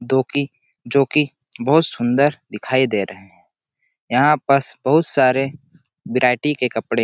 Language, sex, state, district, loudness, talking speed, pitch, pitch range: Hindi, male, Chhattisgarh, Sarguja, -18 LUFS, 135 wpm, 135 Hz, 125-150 Hz